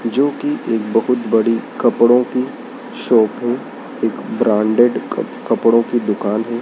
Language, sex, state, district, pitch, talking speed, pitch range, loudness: Hindi, male, Madhya Pradesh, Dhar, 120 Hz, 145 wpm, 115-125 Hz, -17 LUFS